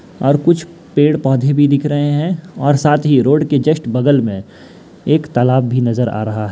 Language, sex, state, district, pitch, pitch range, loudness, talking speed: Hindi, male, Bihar, Gaya, 145 Hz, 125-150 Hz, -14 LUFS, 200 wpm